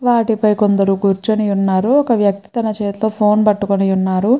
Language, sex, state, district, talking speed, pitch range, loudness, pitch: Telugu, female, Andhra Pradesh, Chittoor, 150 wpm, 195-220 Hz, -15 LUFS, 210 Hz